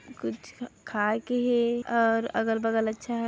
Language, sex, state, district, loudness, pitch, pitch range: Hindi, female, Chhattisgarh, Kabirdham, -27 LUFS, 230 Hz, 225-240 Hz